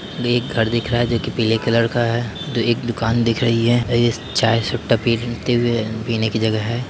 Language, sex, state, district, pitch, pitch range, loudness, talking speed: Hindi, male, Uttar Pradesh, Hamirpur, 115 Hz, 115-120 Hz, -19 LUFS, 245 wpm